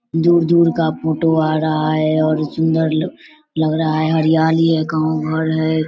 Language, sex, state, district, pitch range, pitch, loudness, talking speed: Hindi, male, Bihar, Vaishali, 155-165 Hz, 160 Hz, -16 LUFS, 155 wpm